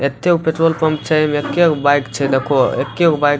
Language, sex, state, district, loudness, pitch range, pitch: Maithili, male, Bihar, Supaul, -15 LUFS, 140-160 Hz, 150 Hz